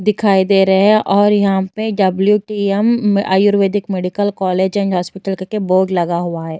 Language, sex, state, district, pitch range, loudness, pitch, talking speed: Hindi, female, Uttar Pradesh, Jyotiba Phule Nagar, 190-205 Hz, -15 LUFS, 195 Hz, 165 wpm